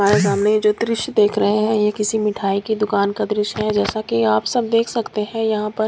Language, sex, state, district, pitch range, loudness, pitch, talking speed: Hindi, female, Punjab, Kapurthala, 205-220 Hz, -19 LUFS, 210 Hz, 235 wpm